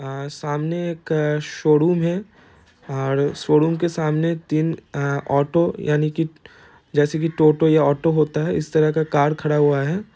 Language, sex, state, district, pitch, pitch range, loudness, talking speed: Hindi, male, Bihar, East Champaran, 155 Hz, 145-165 Hz, -20 LUFS, 155 wpm